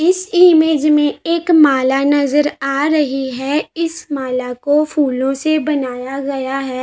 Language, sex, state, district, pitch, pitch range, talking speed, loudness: Hindi, female, Uttar Pradesh, Varanasi, 290 Hz, 270-310 Hz, 150 wpm, -15 LUFS